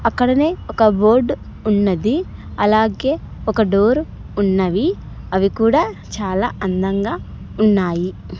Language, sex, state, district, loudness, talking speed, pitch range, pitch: Telugu, male, Andhra Pradesh, Sri Satya Sai, -18 LUFS, 95 wpm, 190-240 Hz, 210 Hz